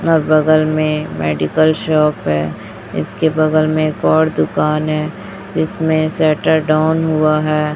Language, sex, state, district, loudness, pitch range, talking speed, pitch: Hindi, female, Chhattisgarh, Raipur, -15 LUFS, 150-155 Hz, 140 wpm, 155 Hz